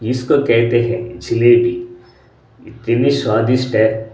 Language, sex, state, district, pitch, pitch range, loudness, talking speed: Hindi, male, Odisha, Sambalpur, 120 Hz, 110-120 Hz, -15 LUFS, 100 wpm